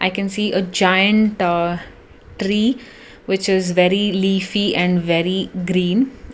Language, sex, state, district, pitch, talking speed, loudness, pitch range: English, female, Karnataka, Bangalore, 190 Hz, 125 wpm, -18 LUFS, 180-205 Hz